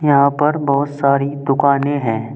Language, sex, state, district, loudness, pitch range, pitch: Hindi, male, Uttar Pradesh, Saharanpur, -16 LUFS, 140-145 Hz, 140 Hz